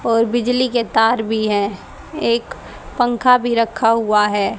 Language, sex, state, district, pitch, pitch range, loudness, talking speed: Hindi, female, Haryana, Charkhi Dadri, 230 Hz, 220-240 Hz, -17 LUFS, 155 wpm